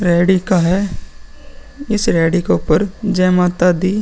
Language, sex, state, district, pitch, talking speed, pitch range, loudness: Hindi, male, Uttar Pradesh, Muzaffarnagar, 185 Hz, 165 wpm, 175-200 Hz, -15 LUFS